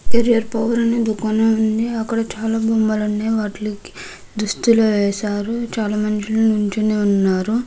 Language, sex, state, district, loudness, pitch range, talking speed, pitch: Telugu, female, Andhra Pradesh, Krishna, -18 LUFS, 210-225 Hz, 100 wpm, 220 Hz